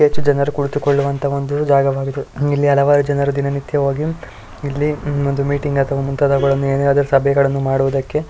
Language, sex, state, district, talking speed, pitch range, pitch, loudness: Kannada, male, Karnataka, Shimoga, 115 wpm, 140-145 Hz, 140 Hz, -17 LUFS